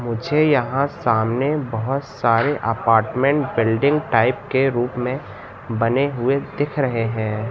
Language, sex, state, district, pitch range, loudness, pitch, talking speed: Hindi, male, Madhya Pradesh, Katni, 115-140 Hz, -20 LUFS, 125 Hz, 130 wpm